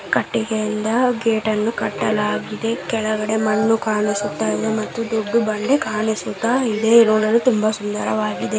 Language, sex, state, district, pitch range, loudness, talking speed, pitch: Kannada, male, Karnataka, Bijapur, 215-225 Hz, -19 LUFS, 50 wpm, 220 Hz